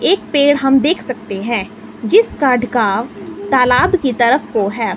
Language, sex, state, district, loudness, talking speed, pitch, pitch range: Hindi, female, Himachal Pradesh, Shimla, -14 LUFS, 155 wpm, 255 Hz, 235-295 Hz